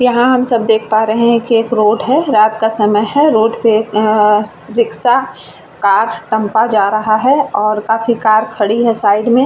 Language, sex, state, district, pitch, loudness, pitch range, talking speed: Hindi, female, Bihar, Vaishali, 220 Hz, -12 LUFS, 215-235 Hz, 210 wpm